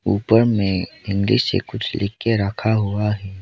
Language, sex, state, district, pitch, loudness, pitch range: Hindi, male, Arunachal Pradesh, Lower Dibang Valley, 105 Hz, -20 LUFS, 100-115 Hz